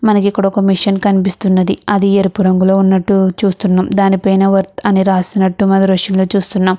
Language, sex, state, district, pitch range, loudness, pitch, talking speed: Telugu, female, Andhra Pradesh, Krishna, 190-200 Hz, -12 LUFS, 195 Hz, 160 wpm